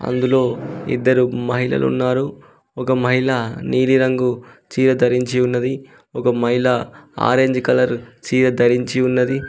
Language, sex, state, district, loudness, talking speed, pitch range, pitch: Telugu, male, Telangana, Mahabubabad, -18 LUFS, 100 wpm, 125-130 Hz, 125 Hz